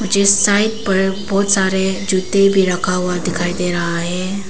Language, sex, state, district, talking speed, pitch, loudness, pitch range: Hindi, female, Arunachal Pradesh, Papum Pare, 175 wpm, 190 Hz, -16 LUFS, 180-200 Hz